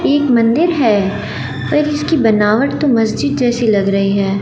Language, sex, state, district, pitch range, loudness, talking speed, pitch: Hindi, female, Chandigarh, Chandigarh, 210-285 Hz, -14 LUFS, 160 wpm, 235 Hz